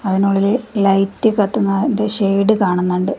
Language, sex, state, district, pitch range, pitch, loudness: Malayalam, female, Kerala, Kasaragod, 195-215 Hz, 200 Hz, -16 LUFS